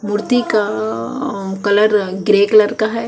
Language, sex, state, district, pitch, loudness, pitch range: Hindi, female, Chhattisgarh, Kabirdham, 210 Hz, -15 LUFS, 195-215 Hz